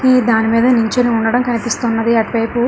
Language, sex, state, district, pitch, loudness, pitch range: Telugu, female, Andhra Pradesh, Srikakulam, 235 Hz, -14 LUFS, 225-245 Hz